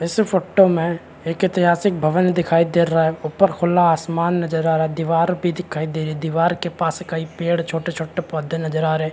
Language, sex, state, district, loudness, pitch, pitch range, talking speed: Hindi, male, Chhattisgarh, Rajnandgaon, -19 LUFS, 165 Hz, 160-175 Hz, 225 wpm